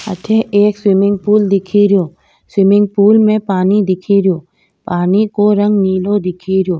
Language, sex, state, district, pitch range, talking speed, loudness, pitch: Rajasthani, female, Rajasthan, Nagaur, 190-205 Hz, 125 wpm, -13 LUFS, 200 Hz